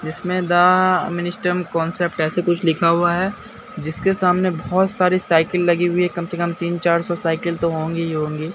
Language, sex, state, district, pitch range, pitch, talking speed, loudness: Hindi, male, Bihar, Katihar, 165-180 Hz, 175 Hz, 195 wpm, -19 LUFS